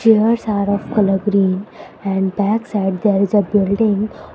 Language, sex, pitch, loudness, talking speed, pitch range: English, female, 205 Hz, -17 LUFS, 165 wpm, 195-215 Hz